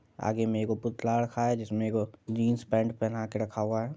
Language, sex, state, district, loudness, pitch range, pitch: Hindi, male, Bihar, Madhepura, -30 LUFS, 110-115 Hz, 110 Hz